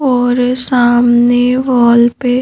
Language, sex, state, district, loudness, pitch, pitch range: Hindi, female, Madhya Pradesh, Bhopal, -10 LUFS, 245 Hz, 240-250 Hz